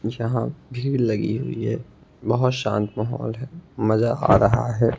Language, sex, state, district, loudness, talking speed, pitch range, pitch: Hindi, male, Madhya Pradesh, Bhopal, -23 LUFS, 155 wpm, 110-125 Hz, 115 Hz